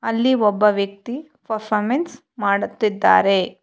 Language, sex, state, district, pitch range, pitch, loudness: Kannada, female, Karnataka, Bangalore, 200-255 Hz, 215 Hz, -19 LUFS